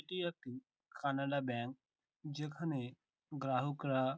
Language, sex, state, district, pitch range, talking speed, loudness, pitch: Bengali, male, West Bengal, Dakshin Dinajpur, 130-150 Hz, 85 wpm, -41 LUFS, 140 Hz